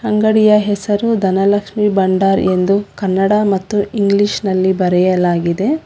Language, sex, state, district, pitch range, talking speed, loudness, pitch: Kannada, female, Karnataka, Bangalore, 190-210 Hz, 100 wpm, -14 LUFS, 200 Hz